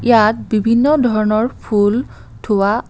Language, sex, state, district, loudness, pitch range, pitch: Assamese, female, Assam, Kamrup Metropolitan, -15 LUFS, 215-240 Hz, 220 Hz